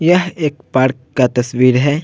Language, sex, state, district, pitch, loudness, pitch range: Hindi, male, Bihar, Vaishali, 130 Hz, -15 LUFS, 125-150 Hz